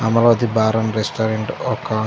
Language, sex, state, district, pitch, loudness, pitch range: Telugu, male, Andhra Pradesh, Chittoor, 110 Hz, -18 LUFS, 110-115 Hz